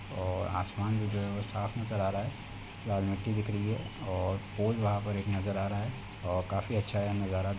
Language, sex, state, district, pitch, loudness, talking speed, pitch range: Hindi, male, Uttar Pradesh, Deoria, 100 Hz, -34 LUFS, 245 wpm, 100-105 Hz